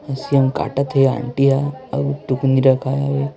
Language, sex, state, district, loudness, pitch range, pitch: Hindi, female, Chhattisgarh, Raipur, -18 LUFS, 135-140 Hz, 135 Hz